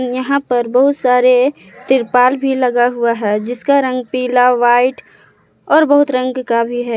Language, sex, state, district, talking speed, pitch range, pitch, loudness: Hindi, female, Jharkhand, Palamu, 165 wpm, 245-265 Hz, 250 Hz, -14 LUFS